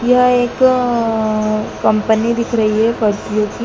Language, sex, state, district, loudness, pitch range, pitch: Hindi, female, Madhya Pradesh, Dhar, -15 LUFS, 215-240 Hz, 225 Hz